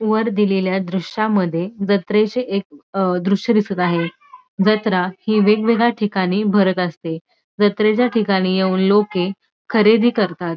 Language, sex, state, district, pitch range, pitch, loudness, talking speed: Marathi, female, Maharashtra, Dhule, 185-215 Hz, 200 Hz, -18 LUFS, 120 wpm